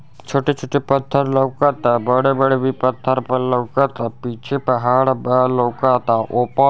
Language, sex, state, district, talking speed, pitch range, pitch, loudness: Bhojpuri, male, Uttar Pradesh, Ghazipur, 150 wpm, 125-135 Hz, 130 Hz, -18 LUFS